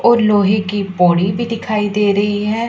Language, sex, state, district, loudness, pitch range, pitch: Hindi, female, Punjab, Pathankot, -15 LUFS, 200-220 Hz, 205 Hz